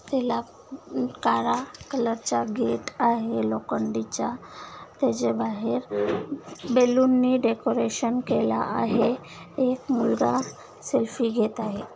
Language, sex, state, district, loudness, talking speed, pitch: Marathi, female, Maharashtra, Dhule, -25 LUFS, 95 wpm, 230 Hz